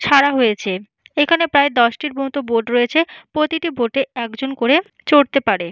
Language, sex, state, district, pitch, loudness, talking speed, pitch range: Bengali, female, West Bengal, Jalpaiguri, 275 Hz, -17 LUFS, 155 wpm, 235-300 Hz